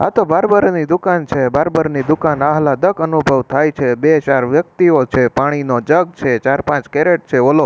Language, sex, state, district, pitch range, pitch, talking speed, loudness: Gujarati, male, Gujarat, Gandhinagar, 135-160 Hz, 150 Hz, 195 wpm, -14 LUFS